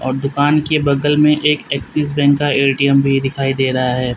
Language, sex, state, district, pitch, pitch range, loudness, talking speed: Hindi, male, Uttar Pradesh, Lalitpur, 140 Hz, 135-145 Hz, -15 LUFS, 200 wpm